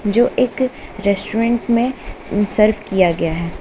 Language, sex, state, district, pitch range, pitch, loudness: Hindi, female, Uttar Pradesh, Lucknow, 200-240 Hz, 215 Hz, -17 LUFS